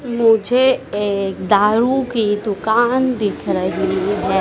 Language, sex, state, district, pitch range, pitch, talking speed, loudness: Hindi, female, Madhya Pradesh, Dhar, 205-250 Hz, 220 Hz, 110 wpm, -17 LUFS